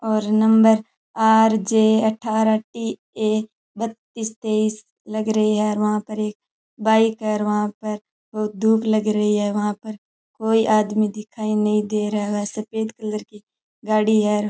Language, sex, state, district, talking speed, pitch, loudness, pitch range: Rajasthani, male, Rajasthan, Churu, 160 wpm, 215 Hz, -20 LUFS, 210-220 Hz